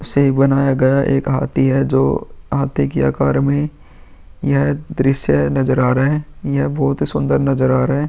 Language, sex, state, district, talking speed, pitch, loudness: Hindi, male, Uttar Pradesh, Muzaffarnagar, 180 wpm, 130 Hz, -16 LUFS